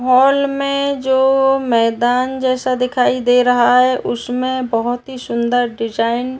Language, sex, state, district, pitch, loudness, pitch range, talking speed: Hindi, female, Uttar Pradesh, Gorakhpur, 250 Hz, -16 LUFS, 240-265 Hz, 140 wpm